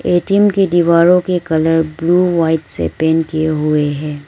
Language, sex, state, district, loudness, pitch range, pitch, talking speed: Hindi, female, Arunachal Pradesh, Lower Dibang Valley, -14 LUFS, 155-175 Hz, 165 Hz, 170 wpm